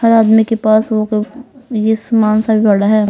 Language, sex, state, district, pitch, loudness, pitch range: Hindi, female, Bihar, Patna, 220 Hz, -13 LUFS, 215-225 Hz